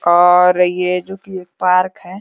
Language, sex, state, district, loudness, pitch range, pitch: Hindi, female, Uttar Pradesh, Deoria, -14 LUFS, 180-185 Hz, 180 Hz